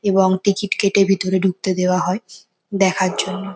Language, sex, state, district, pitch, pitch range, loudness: Bengali, female, West Bengal, North 24 Parganas, 190 Hz, 185-200 Hz, -18 LUFS